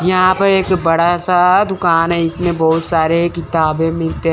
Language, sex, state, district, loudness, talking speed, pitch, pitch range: Hindi, male, Chandigarh, Chandigarh, -14 LUFS, 165 wpm, 170 Hz, 165-185 Hz